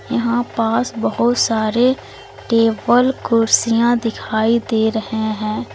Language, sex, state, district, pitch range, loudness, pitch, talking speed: Hindi, female, Uttar Pradesh, Lalitpur, 220-240 Hz, -17 LUFS, 230 Hz, 105 wpm